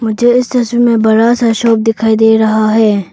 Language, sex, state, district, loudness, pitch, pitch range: Hindi, female, Arunachal Pradesh, Papum Pare, -10 LUFS, 225 Hz, 220-235 Hz